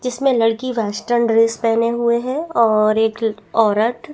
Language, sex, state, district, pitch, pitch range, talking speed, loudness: Hindi, female, Chhattisgarh, Bastar, 230 Hz, 220-240 Hz, 160 wpm, -17 LUFS